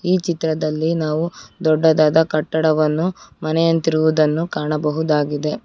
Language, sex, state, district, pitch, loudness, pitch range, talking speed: Kannada, female, Karnataka, Bangalore, 155 Hz, -18 LUFS, 155-165 Hz, 75 wpm